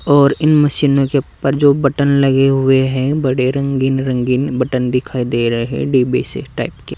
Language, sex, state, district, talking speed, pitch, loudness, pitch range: Hindi, male, Uttar Pradesh, Saharanpur, 180 wpm, 135 Hz, -15 LUFS, 130-140 Hz